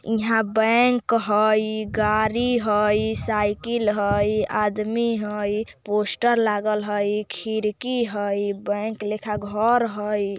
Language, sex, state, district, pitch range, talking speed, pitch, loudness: Bajjika, female, Bihar, Vaishali, 210-225 Hz, 105 wpm, 215 Hz, -22 LUFS